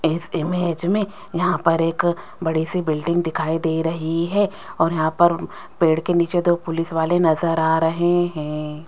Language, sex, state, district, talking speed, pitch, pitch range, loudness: Hindi, female, Rajasthan, Jaipur, 175 wpm, 165 Hz, 160-175 Hz, -20 LUFS